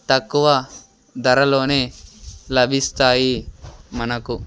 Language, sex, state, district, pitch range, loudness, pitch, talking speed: Telugu, male, Andhra Pradesh, Sri Satya Sai, 120-135 Hz, -18 LUFS, 130 Hz, 55 wpm